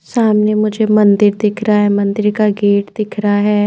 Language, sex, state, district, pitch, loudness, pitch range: Hindi, female, Chandigarh, Chandigarh, 210 Hz, -13 LUFS, 205-215 Hz